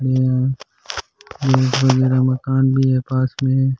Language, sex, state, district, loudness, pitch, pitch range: Rajasthani, male, Rajasthan, Churu, -17 LUFS, 130 Hz, 130-135 Hz